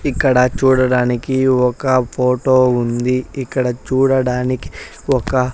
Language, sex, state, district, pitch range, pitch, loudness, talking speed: Telugu, male, Andhra Pradesh, Sri Satya Sai, 125-130 Hz, 125 Hz, -16 LUFS, 85 wpm